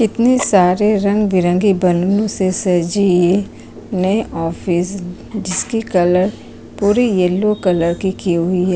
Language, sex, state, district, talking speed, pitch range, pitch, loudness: Hindi, female, Uttar Pradesh, Jyotiba Phule Nagar, 115 wpm, 180-205 Hz, 185 Hz, -16 LUFS